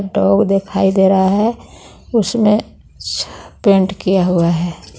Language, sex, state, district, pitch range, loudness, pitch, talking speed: Hindi, female, Jharkhand, Garhwa, 170-200 Hz, -15 LUFS, 195 Hz, 130 wpm